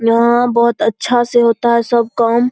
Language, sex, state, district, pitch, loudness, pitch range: Hindi, female, Bihar, Saharsa, 235 Hz, -13 LUFS, 230-240 Hz